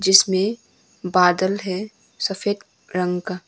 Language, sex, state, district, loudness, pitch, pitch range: Hindi, female, Arunachal Pradesh, Longding, -21 LUFS, 190 Hz, 185-205 Hz